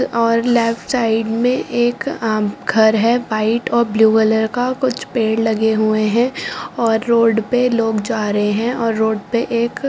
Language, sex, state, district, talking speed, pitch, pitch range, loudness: Hindi, female, Delhi, New Delhi, 175 wpm, 230 Hz, 220-240 Hz, -17 LUFS